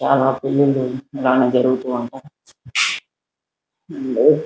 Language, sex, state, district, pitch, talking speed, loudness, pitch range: Telugu, male, Andhra Pradesh, Guntur, 130 Hz, 80 wpm, -19 LUFS, 130-135 Hz